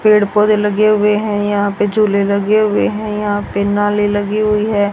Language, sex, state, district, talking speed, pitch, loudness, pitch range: Hindi, female, Haryana, Rohtak, 205 wpm, 210 Hz, -14 LUFS, 205-215 Hz